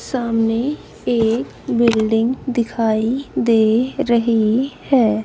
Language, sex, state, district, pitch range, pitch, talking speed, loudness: Hindi, female, Haryana, Charkhi Dadri, 225-250 Hz, 235 Hz, 80 wpm, -18 LUFS